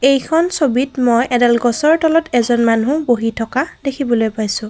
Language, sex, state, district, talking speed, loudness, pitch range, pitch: Assamese, female, Assam, Kamrup Metropolitan, 155 wpm, -15 LUFS, 235-280 Hz, 245 Hz